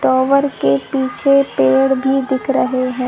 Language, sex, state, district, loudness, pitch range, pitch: Hindi, female, Chhattisgarh, Bilaspur, -15 LUFS, 255-275 Hz, 265 Hz